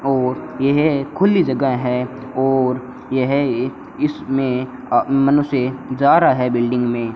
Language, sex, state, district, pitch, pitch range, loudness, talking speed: Hindi, male, Rajasthan, Bikaner, 130 Hz, 125-135 Hz, -18 LUFS, 145 wpm